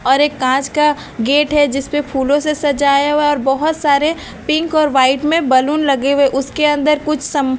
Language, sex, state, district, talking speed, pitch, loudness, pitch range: Hindi, female, Bihar, Katihar, 220 wpm, 290 Hz, -15 LUFS, 270-300 Hz